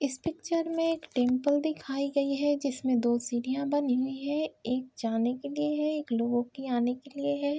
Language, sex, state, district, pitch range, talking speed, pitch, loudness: Hindi, female, Uttar Pradesh, Varanasi, 250-290 Hz, 205 wpm, 275 Hz, -30 LUFS